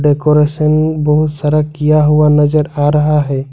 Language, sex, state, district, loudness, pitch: Hindi, male, Jharkhand, Ranchi, -12 LUFS, 150 Hz